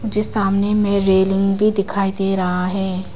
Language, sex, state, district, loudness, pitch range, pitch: Hindi, female, Arunachal Pradesh, Papum Pare, -16 LUFS, 190-205 Hz, 195 Hz